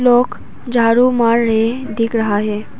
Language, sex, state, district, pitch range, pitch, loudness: Hindi, female, Arunachal Pradesh, Papum Pare, 220-245 Hz, 230 Hz, -15 LUFS